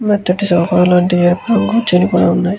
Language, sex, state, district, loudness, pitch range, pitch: Telugu, male, Andhra Pradesh, Guntur, -13 LUFS, 180-205 Hz, 180 Hz